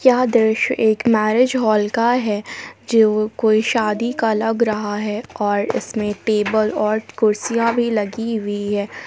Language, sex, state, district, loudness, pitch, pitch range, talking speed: Hindi, female, Jharkhand, Palamu, -18 LUFS, 220 Hz, 210-230 Hz, 150 wpm